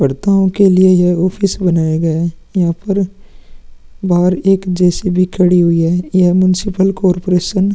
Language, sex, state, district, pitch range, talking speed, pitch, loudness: Hindi, male, Bihar, Vaishali, 175-195 Hz, 155 wpm, 180 Hz, -13 LUFS